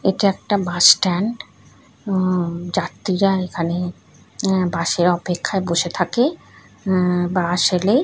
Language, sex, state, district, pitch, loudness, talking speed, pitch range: Bengali, female, West Bengal, North 24 Parganas, 180 Hz, -19 LUFS, 110 wpm, 175-195 Hz